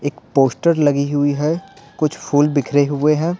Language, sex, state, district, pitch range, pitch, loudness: Hindi, male, Bihar, Patna, 145-155 Hz, 145 Hz, -17 LUFS